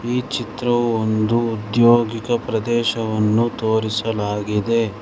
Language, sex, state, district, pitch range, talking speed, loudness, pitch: Kannada, male, Karnataka, Bangalore, 110-120 Hz, 70 wpm, -19 LUFS, 115 Hz